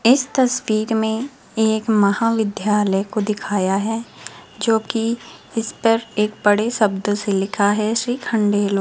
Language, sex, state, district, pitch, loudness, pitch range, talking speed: Hindi, female, Rajasthan, Jaipur, 215 Hz, -19 LUFS, 205-230 Hz, 135 wpm